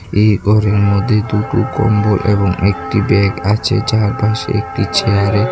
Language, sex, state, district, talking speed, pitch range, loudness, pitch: Bengali, male, Tripura, West Tripura, 140 wpm, 100-110 Hz, -14 LUFS, 105 Hz